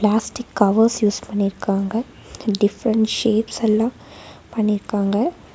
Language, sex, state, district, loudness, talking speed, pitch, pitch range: Tamil, female, Tamil Nadu, Nilgiris, -20 LUFS, 75 wpm, 215 Hz, 205-225 Hz